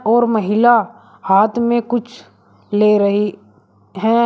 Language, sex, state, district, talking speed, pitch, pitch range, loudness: Hindi, male, Uttar Pradesh, Shamli, 110 wpm, 215 Hz, 200-235 Hz, -15 LUFS